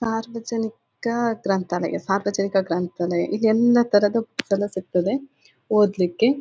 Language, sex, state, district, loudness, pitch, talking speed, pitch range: Kannada, female, Karnataka, Dakshina Kannada, -22 LUFS, 205 Hz, 105 wpm, 190-230 Hz